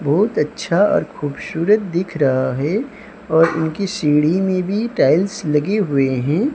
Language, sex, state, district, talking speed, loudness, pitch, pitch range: Hindi, male, Odisha, Sambalpur, 145 wpm, -18 LUFS, 170 Hz, 150-205 Hz